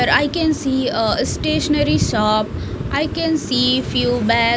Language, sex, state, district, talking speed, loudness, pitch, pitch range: English, female, Punjab, Fazilka, 145 wpm, -18 LUFS, 235 Hz, 190-300 Hz